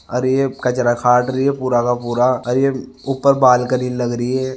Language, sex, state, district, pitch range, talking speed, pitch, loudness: Marwari, male, Rajasthan, Nagaur, 125-130 Hz, 210 wpm, 125 Hz, -17 LUFS